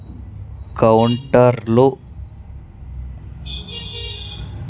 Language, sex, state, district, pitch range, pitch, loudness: Telugu, male, Andhra Pradesh, Sri Satya Sai, 85-115 Hz, 95 Hz, -17 LUFS